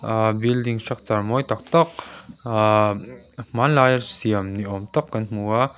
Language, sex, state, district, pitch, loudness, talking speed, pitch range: Mizo, male, Mizoram, Aizawl, 110 Hz, -21 LUFS, 155 wpm, 105-130 Hz